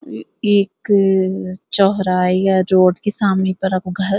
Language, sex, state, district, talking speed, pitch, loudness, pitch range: Garhwali, female, Uttarakhand, Uttarkashi, 130 wpm, 190 Hz, -16 LUFS, 185-195 Hz